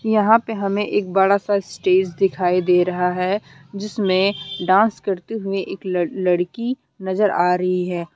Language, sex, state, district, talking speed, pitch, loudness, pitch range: Hindi, female, Jharkhand, Deoghar, 160 wpm, 190 Hz, -20 LUFS, 180-205 Hz